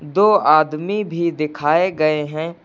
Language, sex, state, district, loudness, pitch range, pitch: Hindi, male, Uttar Pradesh, Lucknow, -17 LUFS, 150-175 Hz, 155 Hz